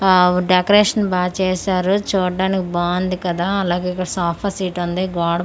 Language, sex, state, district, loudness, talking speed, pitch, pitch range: Telugu, female, Andhra Pradesh, Manyam, -18 LUFS, 130 wpm, 185 Hz, 180-190 Hz